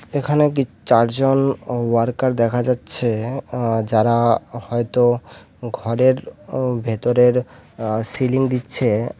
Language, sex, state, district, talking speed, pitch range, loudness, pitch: Bengali, male, West Bengal, Alipurduar, 90 wpm, 115-130 Hz, -19 LUFS, 120 Hz